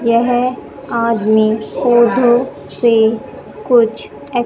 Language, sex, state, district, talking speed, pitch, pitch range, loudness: Hindi, female, Haryana, Charkhi Dadri, 80 wpm, 235 Hz, 225-245 Hz, -14 LUFS